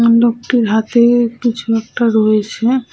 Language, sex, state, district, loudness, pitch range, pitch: Bengali, female, West Bengal, Jhargram, -14 LUFS, 225-240 Hz, 235 Hz